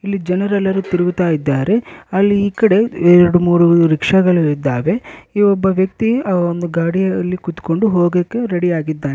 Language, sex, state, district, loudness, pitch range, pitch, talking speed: Kannada, male, Karnataka, Bellary, -15 LUFS, 170-200 Hz, 180 Hz, 140 wpm